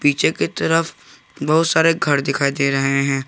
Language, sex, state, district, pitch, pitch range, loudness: Hindi, male, Jharkhand, Garhwa, 145 Hz, 140-160 Hz, -18 LUFS